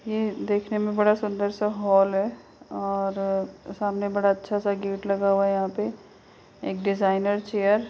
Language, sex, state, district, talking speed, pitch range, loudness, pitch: Hindi, female, Uttar Pradesh, Hamirpur, 175 wpm, 195-210 Hz, -25 LUFS, 200 Hz